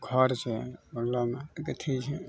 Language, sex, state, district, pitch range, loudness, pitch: Hindi, male, Bihar, Araria, 120-140 Hz, -31 LUFS, 130 Hz